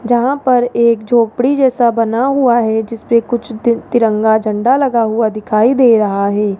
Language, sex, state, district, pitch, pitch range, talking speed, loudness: Hindi, male, Rajasthan, Jaipur, 235 Hz, 220-245 Hz, 165 wpm, -13 LUFS